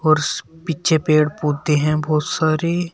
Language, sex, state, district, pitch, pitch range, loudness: Hindi, male, Uttar Pradesh, Shamli, 155 Hz, 150-165 Hz, -19 LUFS